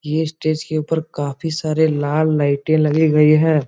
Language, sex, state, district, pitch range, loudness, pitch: Hindi, male, Bihar, Supaul, 150-160 Hz, -17 LUFS, 155 Hz